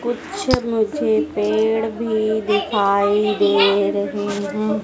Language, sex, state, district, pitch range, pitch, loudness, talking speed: Hindi, female, Madhya Pradesh, Dhar, 200-220 Hz, 205 Hz, -19 LUFS, 100 wpm